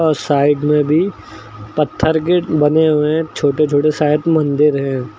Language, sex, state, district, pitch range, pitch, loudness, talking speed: Hindi, male, Uttar Pradesh, Lucknow, 145-160 Hz, 150 Hz, -15 LUFS, 160 wpm